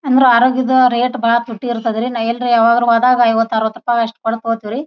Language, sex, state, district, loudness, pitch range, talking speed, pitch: Kannada, female, Karnataka, Bijapur, -14 LUFS, 230-250 Hz, 160 wpm, 235 Hz